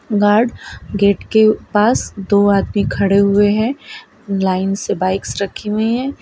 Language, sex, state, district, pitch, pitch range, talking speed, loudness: Hindi, female, Gujarat, Valsad, 205 Hz, 200-220 Hz, 145 wpm, -16 LUFS